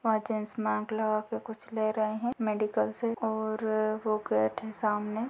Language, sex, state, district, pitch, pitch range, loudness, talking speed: Hindi, female, Uttar Pradesh, Ghazipur, 215 Hz, 215-220 Hz, -31 LUFS, 180 wpm